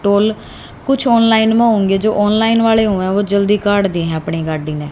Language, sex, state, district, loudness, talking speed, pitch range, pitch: Hindi, female, Haryana, Rohtak, -14 LUFS, 210 wpm, 190-225 Hz, 205 Hz